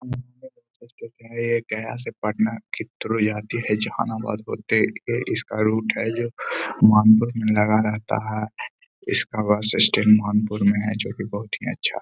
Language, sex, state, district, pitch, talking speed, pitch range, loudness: Hindi, male, Bihar, Gaya, 110 Hz, 150 wpm, 105-115 Hz, -22 LUFS